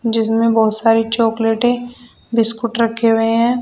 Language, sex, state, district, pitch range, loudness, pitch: Hindi, female, Uttar Pradesh, Shamli, 225-235 Hz, -16 LUFS, 230 Hz